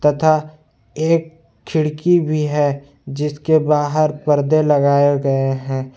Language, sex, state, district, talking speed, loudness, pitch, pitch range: Hindi, male, Jharkhand, Palamu, 110 wpm, -17 LUFS, 150 Hz, 140-155 Hz